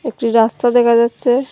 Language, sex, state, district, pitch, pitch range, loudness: Bengali, female, Tripura, Dhalai, 240 Hz, 235-245 Hz, -14 LUFS